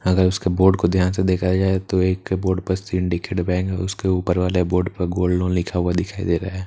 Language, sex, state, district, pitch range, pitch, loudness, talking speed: Hindi, male, Bihar, Katihar, 90-95 Hz, 90 Hz, -20 LUFS, 250 wpm